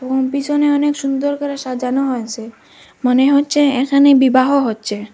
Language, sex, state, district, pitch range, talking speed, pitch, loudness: Bengali, female, Assam, Hailakandi, 255-280 Hz, 140 wpm, 270 Hz, -15 LUFS